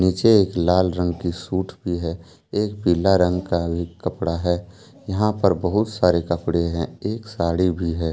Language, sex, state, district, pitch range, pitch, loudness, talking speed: Hindi, male, Jharkhand, Deoghar, 85-95 Hz, 90 Hz, -21 LUFS, 185 wpm